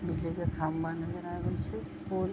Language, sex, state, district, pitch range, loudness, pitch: Maithili, female, Bihar, Vaishali, 165-175 Hz, -35 LUFS, 165 Hz